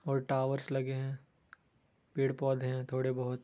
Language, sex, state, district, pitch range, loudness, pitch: Hindi, male, Bihar, Bhagalpur, 130-135 Hz, -35 LUFS, 135 Hz